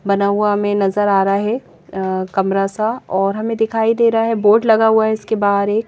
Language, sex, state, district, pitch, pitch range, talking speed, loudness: Hindi, female, Madhya Pradesh, Bhopal, 210 Hz, 200-225 Hz, 235 wpm, -16 LUFS